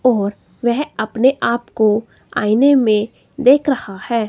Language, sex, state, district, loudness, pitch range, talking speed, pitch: Hindi, female, Himachal Pradesh, Shimla, -17 LUFS, 215-260 Hz, 140 wpm, 235 Hz